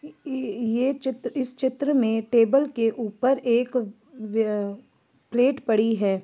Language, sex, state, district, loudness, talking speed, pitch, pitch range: Hindi, female, Chhattisgarh, Bastar, -24 LUFS, 125 wpm, 240 Hz, 225-265 Hz